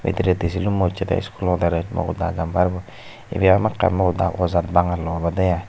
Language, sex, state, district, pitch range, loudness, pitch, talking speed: Chakma, male, Tripura, Unakoti, 85-95 Hz, -21 LUFS, 90 Hz, 150 wpm